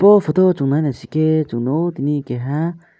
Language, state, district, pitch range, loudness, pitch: Kokborok, Tripura, West Tripura, 135-170 Hz, -18 LUFS, 155 Hz